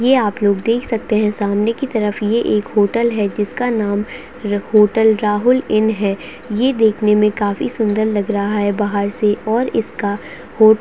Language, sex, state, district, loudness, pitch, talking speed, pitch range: Hindi, female, Chhattisgarh, Sarguja, -17 LUFS, 215 Hz, 190 wpm, 205-225 Hz